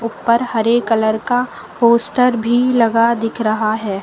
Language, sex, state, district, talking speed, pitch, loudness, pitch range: Hindi, female, Uttar Pradesh, Lucknow, 150 wpm, 235 Hz, -15 LUFS, 225-240 Hz